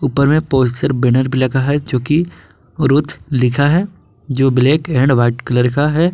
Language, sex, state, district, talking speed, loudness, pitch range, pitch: Hindi, male, Jharkhand, Garhwa, 175 wpm, -15 LUFS, 125-150 Hz, 135 Hz